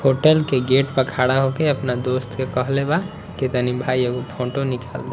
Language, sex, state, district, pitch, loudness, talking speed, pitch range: Bhojpuri, male, Bihar, Muzaffarpur, 130 Hz, -20 LUFS, 220 wpm, 125-135 Hz